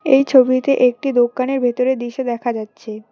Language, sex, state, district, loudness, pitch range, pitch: Bengali, female, West Bengal, Cooch Behar, -17 LUFS, 240-265 Hz, 255 Hz